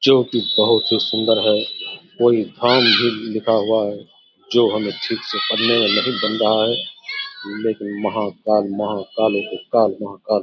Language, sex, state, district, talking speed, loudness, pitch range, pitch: Hindi, male, Bihar, Samastipur, 160 wpm, -18 LUFS, 105-115 Hz, 110 Hz